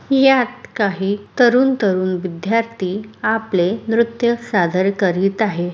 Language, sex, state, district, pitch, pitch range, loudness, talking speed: Marathi, female, Maharashtra, Sindhudurg, 210 Hz, 185-235 Hz, -18 LUFS, 105 wpm